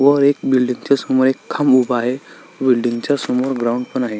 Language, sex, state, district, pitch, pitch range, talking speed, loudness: Marathi, male, Maharashtra, Sindhudurg, 130 Hz, 125-140 Hz, 215 wpm, -17 LUFS